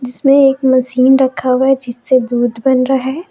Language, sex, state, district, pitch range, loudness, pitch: Hindi, female, Jharkhand, Palamu, 255-270 Hz, -12 LUFS, 260 Hz